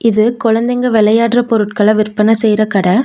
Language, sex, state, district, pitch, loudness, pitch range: Tamil, female, Tamil Nadu, Nilgiris, 220 Hz, -12 LUFS, 215-230 Hz